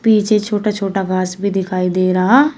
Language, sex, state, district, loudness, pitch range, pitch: Hindi, female, Uttar Pradesh, Shamli, -16 LUFS, 185-215 Hz, 195 Hz